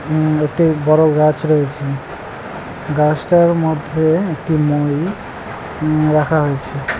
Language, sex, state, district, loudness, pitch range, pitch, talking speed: Bengali, male, West Bengal, Cooch Behar, -16 LUFS, 150-160 Hz, 155 Hz, 105 wpm